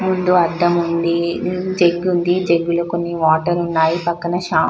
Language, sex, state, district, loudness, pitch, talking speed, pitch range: Telugu, female, Telangana, Karimnagar, -17 LUFS, 170 Hz, 155 wpm, 170-175 Hz